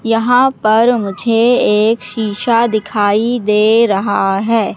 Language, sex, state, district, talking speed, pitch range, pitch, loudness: Hindi, female, Madhya Pradesh, Katni, 115 wpm, 210-235 Hz, 225 Hz, -13 LUFS